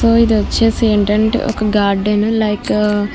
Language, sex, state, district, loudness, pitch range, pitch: Telugu, female, Andhra Pradesh, Krishna, -14 LUFS, 210-225 Hz, 215 Hz